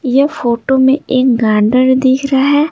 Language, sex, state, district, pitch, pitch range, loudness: Hindi, female, Bihar, Patna, 260 Hz, 250-275 Hz, -12 LUFS